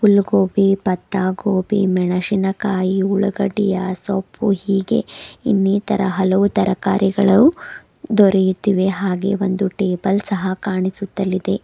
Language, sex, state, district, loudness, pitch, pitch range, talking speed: Kannada, female, Karnataka, Bidar, -18 LUFS, 195 Hz, 190-200 Hz, 75 wpm